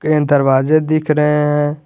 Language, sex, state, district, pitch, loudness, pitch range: Hindi, male, Jharkhand, Garhwa, 150 Hz, -14 LUFS, 145-155 Hz